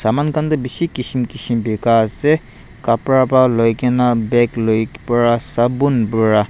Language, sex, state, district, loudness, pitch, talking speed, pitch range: Nagamese, male, Nagaland, Dimapur, -16 LUFS, 120 Hz, 165 wpm, 115-130 Hz